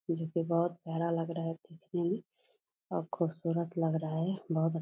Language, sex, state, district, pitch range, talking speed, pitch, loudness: Hindi, female, Bihar, Purnia, 165-175 Hz, 200 wpm, 170 Hz, -34 LUFS